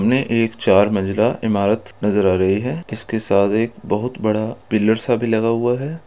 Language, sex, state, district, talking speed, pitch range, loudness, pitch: Hindi, male, Bihar, East Champaran, 195 wpm, 100-115 Hz, -18 LUFS, 110 Hz